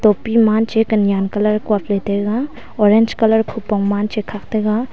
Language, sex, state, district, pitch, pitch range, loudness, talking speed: Wancho, female, Arunachal Pradesh, Longding, 215 Hz, 205-220 Hz, -16 LUFS, 195 wpm